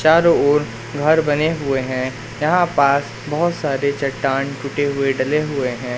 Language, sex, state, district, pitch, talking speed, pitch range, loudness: Hindi, male, Madhya Pradesh, Katni, 140 Hz, 160 wpm, 135-150 Hz, -18 LUFS